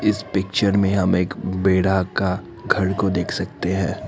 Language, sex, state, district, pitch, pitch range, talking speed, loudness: Hindi, male, Assam, Kamrup Metropolitan, 95 Hz, 95-100 Hz, 175 wpm, -21 LUFS